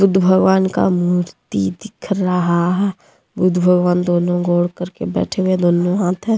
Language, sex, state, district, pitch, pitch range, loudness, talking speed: Hindi, female, Jharkhand, Deoghar, 180 Hz, 175-190 Hz, -17 LUFS, 170 wpm